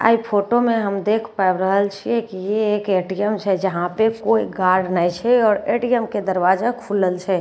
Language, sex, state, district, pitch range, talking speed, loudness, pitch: Maithili, female, Bihar, Katihar, 190-225 Hz, 200 wpm, -19 LUFS, 205 Hz